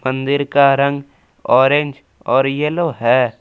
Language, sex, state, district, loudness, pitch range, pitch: Hindi, male, Jharkhand, Palamu, -15 LUFS, 130-145 Hz, 140 Hz